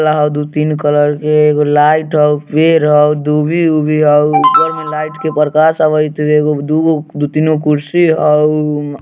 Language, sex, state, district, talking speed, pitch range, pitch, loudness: Bajjika, male, Bihar, Vaishali, 145 wpm, 150-155 Hz, 150 Hz, -12 LUFS